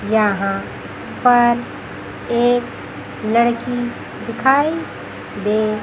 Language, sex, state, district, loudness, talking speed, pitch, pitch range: Hindi, female, Chandigarh, Chandigarh, -18 LUFS, 60 wpm, 235 Hz, 215-245 Hz